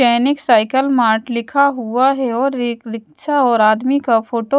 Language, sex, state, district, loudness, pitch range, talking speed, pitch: Hindi, female, Bihar, West Champaran, -15 LUFS, 230-275 Hz, 185 wpm, 245 Hz